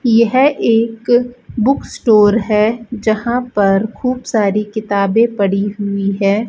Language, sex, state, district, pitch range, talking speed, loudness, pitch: Hindi, female, Rajasthan, Bikaner, 205-235 Hz, 120 wpm, -15 LUFS, 220 Hz